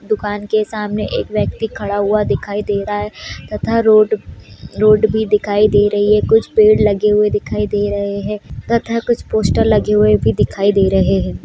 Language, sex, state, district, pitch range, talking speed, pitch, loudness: Hindi, female, Bihar, Samastipur, 200-215 Hz, 195 wpm, 210 Hz, -15 LUFS